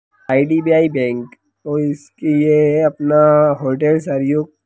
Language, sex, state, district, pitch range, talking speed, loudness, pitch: Hindi, male, Bihar, Lakhisarai, 140-155 Hz, 105 wpm, -15 LUFS, 150 Hz